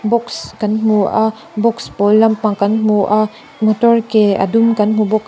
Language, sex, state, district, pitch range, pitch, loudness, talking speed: Mizo, female, Mizoram, Aizawl, 210-225 Hz, 215 Hz, -14 LUFS, 205 wpm